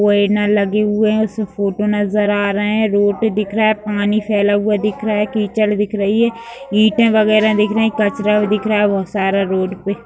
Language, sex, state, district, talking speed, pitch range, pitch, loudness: Hindi, female, Bihar, Madhepura, 220 wpm, 205-215 Hz, 210 Hz, -16 LUFS